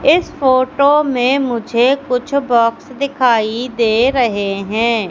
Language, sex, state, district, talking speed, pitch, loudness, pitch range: Hindi, female, Madhya Pradesh, Katni, 115 wpm, 250 Hz, -15 LUFS, 230-275 Hz